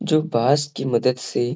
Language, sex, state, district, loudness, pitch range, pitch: Hindi, male, Bihar, Gaya, -21 LUFS, 125-145 Hz, 135 Hz